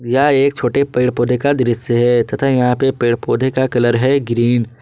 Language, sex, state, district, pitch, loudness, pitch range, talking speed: Hindi, male, Jharkhand, Ranchi, 125 Hz, -15 LUFS, 120-135 Hz, 225 wpm